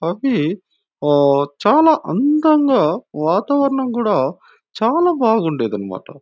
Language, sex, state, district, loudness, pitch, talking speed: Telugu, male, Andhra Pradesh, Anantapur, -16 LUFS, 225 Hz, 85 wpm